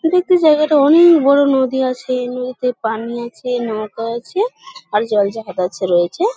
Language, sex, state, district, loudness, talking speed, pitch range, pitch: Bengali, male, West Bengal, Kolkata, -16 LUFS, 160 wpm, 225-310 Hz, 255 Hz